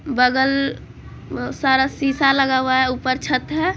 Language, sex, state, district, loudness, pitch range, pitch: Maithili, female, Bihar, Supaul, -18 LUFS, 260-275 Hz, 265 Hz